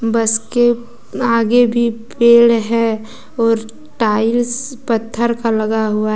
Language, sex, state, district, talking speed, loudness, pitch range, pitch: Hindi, female, Jharkhand, Deoghar, 115 wpm, -15 LUFS, 225-235 Hz, 230 Hz